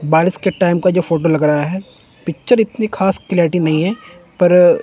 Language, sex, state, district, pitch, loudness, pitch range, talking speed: Hindi, male, Chandigarh, Chandigarh, 175 Hz, -15 LUFS, 165-190 Hz, 200 wpm